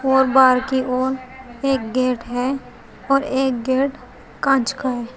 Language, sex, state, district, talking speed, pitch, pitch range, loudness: Hindi, female, Uttar Pradesh, Shamli, 150 wpm, 260 Hz, 250-265 Hz, -19 LUFS